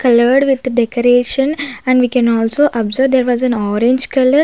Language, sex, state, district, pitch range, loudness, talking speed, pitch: English, female, Maharashtra, Gondia, 240-265 Hz, -14 LUFS, 175 wpm, 250 Hz